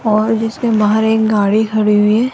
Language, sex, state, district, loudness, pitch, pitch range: Hindi, female, Rajasthan, Jaipur, -14 LUFS, 220 Hz, 210-225 Hz